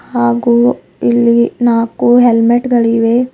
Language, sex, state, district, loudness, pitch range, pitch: Kannada, female, Karnataka, Bidar, -11 LUFS, 230-240 Hz, 235 Hz